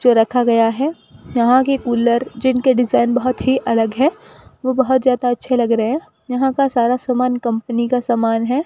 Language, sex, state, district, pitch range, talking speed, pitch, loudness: Hindi, female, Rajasthan, Bikaner, 235-260 Hz, 195 wpm, 250 Hz, -17 LUFS